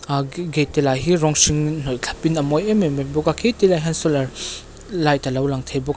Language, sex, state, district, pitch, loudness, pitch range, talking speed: Mizo, female, Mizoram, Aizawl, 150 Hz, -19 LUFS, 140-165 Hz, 290 wpm